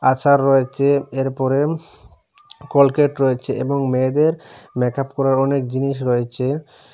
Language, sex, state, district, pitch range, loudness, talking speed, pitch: Bengali, male, Assam, Hailakandi, 130-145 Hz, -18 LUFS, 105 wpm, 135 Hz